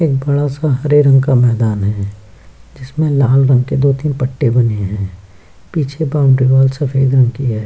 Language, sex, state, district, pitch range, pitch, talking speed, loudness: Hindi, male, Bihar, Kishanganj, 110-140 Hz, 130 Hz, 180 wpm, -13 LUFS